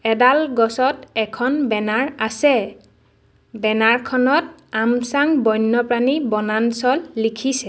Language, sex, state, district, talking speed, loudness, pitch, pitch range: Assamese, female, Assam, Sonitpur, 80 wpm, -18 LUFS, 240 Hz, 220-265 Hz